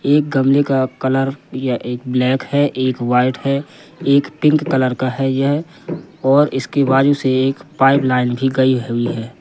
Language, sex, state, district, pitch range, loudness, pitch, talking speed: Hindi, male, Madhya Pradesh, Katni, 130-140 Hz, -16 LUFS, 135 Hz, 180 wpm